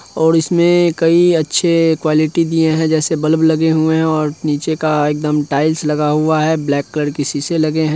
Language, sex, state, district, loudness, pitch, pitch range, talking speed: Hindi, male, Bihar, Sitamarhi, -14 LUFS, 160 Hz, 150-160 Hz, 195 wpm